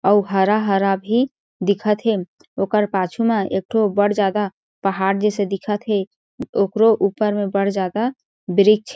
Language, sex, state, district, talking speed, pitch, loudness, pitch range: Chhattisgarhi, female, Chhattisgarh, Jashpur, 145 wpm, 205 Hz, -19 LUFS, 195-215 Hz